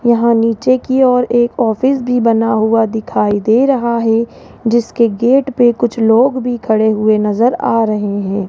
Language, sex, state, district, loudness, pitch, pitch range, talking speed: Hindi, female, Rajasthan, Jaipur, -13 LUFS, 235 Hz, 220-245 Hz, 175 wpm